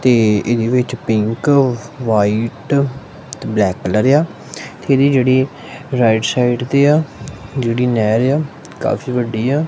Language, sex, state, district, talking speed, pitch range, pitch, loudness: Punjabi, male, Punjab, Kapurthala, 150 wpm, 110-140 Hz, 125 Hz, -16 LUFS